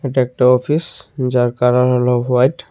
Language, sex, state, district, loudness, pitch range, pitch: Bengali, male, Tripura, Unakoti, -15 LUFS, 125-135 Hz, 125 Hz